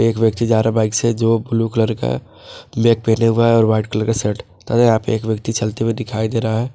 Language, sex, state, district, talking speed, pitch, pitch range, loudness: Hindi, male, Jharkhand, Ranchi, 260 wpm, 115 Hz, 110-115 Hz, -17 LUFS